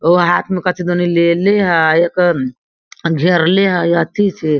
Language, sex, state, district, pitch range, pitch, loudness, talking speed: Hindi, female, Bihar, Sitamarhi, 170-185 Hz, 175 Hz, -14 LUFS, 185 wpm